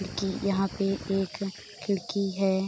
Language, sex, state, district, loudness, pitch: Hindi, female, Bihar, Darbhanga, -29 LUFS, 195 Hz